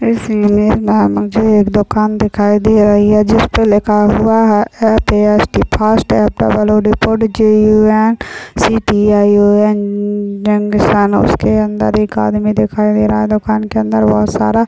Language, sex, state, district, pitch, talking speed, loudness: Hindi, male, Chhattisgarh, Raigarh, 210 Hz, 155 wpm, -11 LUFS